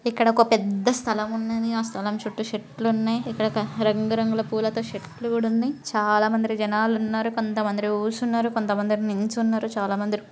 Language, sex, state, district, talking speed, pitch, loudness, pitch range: Telugu, female, Telangana, Karimnagar, 150 wpm, 220 Hz, -24 LUFS, 210-225 Hz